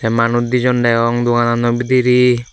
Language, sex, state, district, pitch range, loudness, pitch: Chakma, male, Tripura, Dhalai, 120-125 Hz, -14 LUFS, 120 Hz